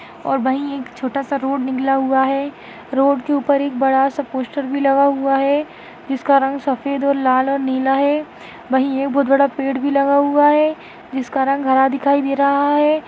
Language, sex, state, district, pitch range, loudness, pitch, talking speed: Hindi, female, Maharashtra, Aurangabad, 270-280 Hz, -17 LUFS, 275 Hz, 195 wpm